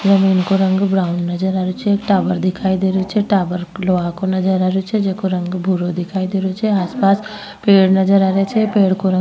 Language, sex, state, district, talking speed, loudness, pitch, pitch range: Rajasthani, female, Rajasthan, Nagaur, 255 wpm, -16 LUFS, 190 Hz, 185-195 Hz